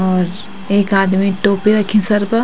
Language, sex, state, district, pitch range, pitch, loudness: Garhwali, female, Uttarakhand, Tehri Garhwal, 195-210 Hz, 200 Hz, -15 LUFS